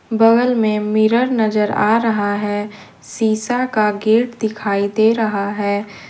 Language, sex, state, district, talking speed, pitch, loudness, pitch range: Hindi, female, Jharkhand, Deoghar, 140 wpm, 215 Hz, -17 LUFS, 205-225 Hz